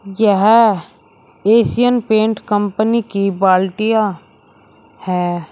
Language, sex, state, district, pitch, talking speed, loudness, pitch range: Hindi, male, Uttar Pradesh, Shamli, 205 Hz, 75 wpm, -15 LUFS, 180-220 Hz